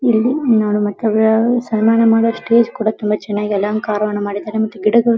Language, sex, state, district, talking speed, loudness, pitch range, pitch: Kannada, female, Karnataka, Dharwad, 140 wpm, -16 LUFS, 210-230 Hz, 220 Hz